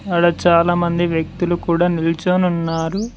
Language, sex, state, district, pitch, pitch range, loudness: Telugu, male, Telangana, Mahabubabad, 175 Hz, 170-175 Hz, -17 LUFS